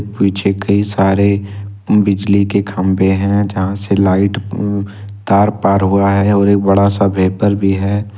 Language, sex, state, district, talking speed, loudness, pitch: Hindi, male, Jharkhand, Ranchi, 160 wpm, -14 LUFS, 100 Hz